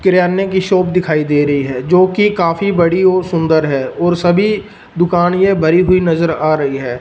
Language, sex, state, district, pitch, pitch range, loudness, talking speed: Hindi, male, Punjab, Fazilka, 175 Hz, 155-185 Hz, -13 LUFS, 205 wpm